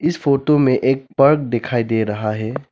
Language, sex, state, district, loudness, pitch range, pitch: Hindi, male, Arunachal Pradesh, Lower Dibang Valley, -17 LUFS, 115-140 Hz, 130 Hz